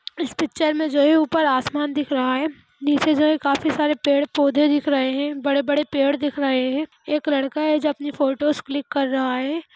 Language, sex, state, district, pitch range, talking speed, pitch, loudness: Hindi, female, Bihar, Lakhisarai, 280-300 Hz, 210 wpm, 290 Hz, -21 LUFS